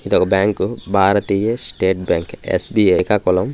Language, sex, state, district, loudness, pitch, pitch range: Telugu, male, Andhra Pradesh, Srikakulam, -17 LUFS, 100 Hz, 95-105 Hz